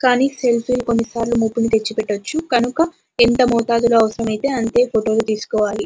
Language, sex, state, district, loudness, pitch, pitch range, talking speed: Telugu, female, Andhra Pradesh, Anantapur, -18 LUFS, 235 Hz, 220-245 Hz, 155 wpm